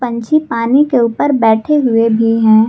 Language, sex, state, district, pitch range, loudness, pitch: Hindi, female, Jharkhand, Garhwa, 225-280 Hz, -12 LUFS, 235 Hz